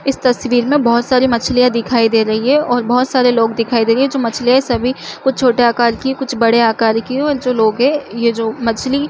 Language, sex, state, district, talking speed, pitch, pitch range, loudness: Chhattisgarhi, female, Chhattisgarh, Jashpur, 240 wpm, 245 Hz, 230-260 Hz, -14 LUFS